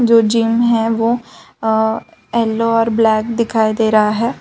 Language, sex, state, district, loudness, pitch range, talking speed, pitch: Hindi, female, Gujarat, Valsad, -15 LUFS, 220-230 Hz, 150 wpm, 225 Hz